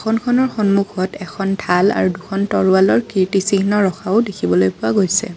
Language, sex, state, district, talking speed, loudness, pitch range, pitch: Assamese, female, Assam, Kamrup Metropolitan, 125 wpm, -17 LUFS, 185-210 Hz, 195 Hz